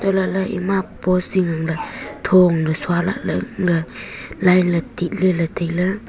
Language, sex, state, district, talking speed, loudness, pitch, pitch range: Wancho, female, Arunachal Pradesh, Longding, 150 wpm, -19 LUFS, 180 Hz, 170-190 Hz